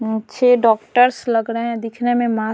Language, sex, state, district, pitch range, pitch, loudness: Hindi, female, Bihar, Vaishali, 225-245 Hz, 230 Hz, -17 LUFS